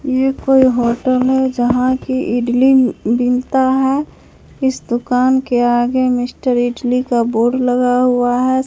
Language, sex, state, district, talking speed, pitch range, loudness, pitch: Hindi, female, Bihar, Katihar, 140 wpm, 245-260 Hz, -15 LUFS, 250 Hz